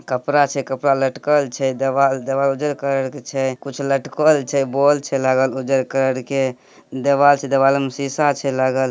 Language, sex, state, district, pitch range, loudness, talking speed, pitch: Hindi, male, Bihar, Samastipur, 130-140 Hz, -18 LUFS, 190 wpm, 135 Hz